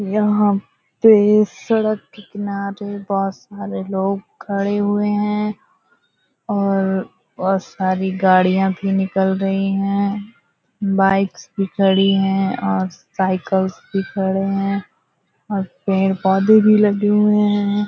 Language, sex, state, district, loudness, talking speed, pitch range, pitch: Hindi, female, Uttar Pradesh, Hamirpur, -18 LUFS, 115 wpm, 190-205 Hz, 195 Hz